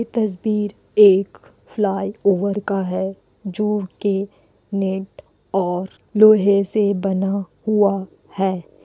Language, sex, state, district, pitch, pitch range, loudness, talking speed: Hindi, female, Bihar, Kishanganj, 200 Hz, 195-210 Hz, -19 LUFS, 100 wpm